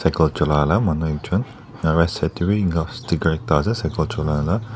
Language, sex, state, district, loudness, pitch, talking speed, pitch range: Nagamese, male, Nagaland, Dimapur, -21 LUFS, 85 Hz, 225 wpm, 80-100 Hz